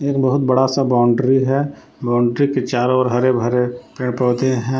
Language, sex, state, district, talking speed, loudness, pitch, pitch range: Hindi, male, Jharkhand, Palamu, 185 wpm, -17 LUFS, 130 Hz, 125-135 Hz